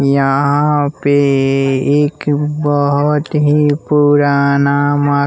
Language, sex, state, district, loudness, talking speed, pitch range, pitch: Hindi, male, Bihar, West Champaran, -13 LUFS, 80 wpm, 140-145 Hz, 145 Hz